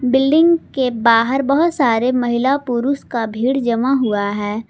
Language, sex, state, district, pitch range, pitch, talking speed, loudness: Hindi, female, Jharkhand, Palamu, 230-275 Hz, 250 Hz, 155 wpm, -16 LUFS